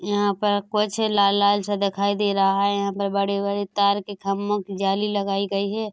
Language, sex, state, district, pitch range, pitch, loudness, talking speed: Hindi, female, Chhattisgarh, Korba, 200-205 Hz, 200 Hz, -22 LUFS, 225 wpm